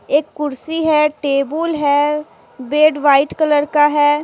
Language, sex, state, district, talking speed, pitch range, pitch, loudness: Hindi, female, Jharkhand, Deoghar, 140 wpm, 290-305 Hz, 295 Hz, -15 LUFS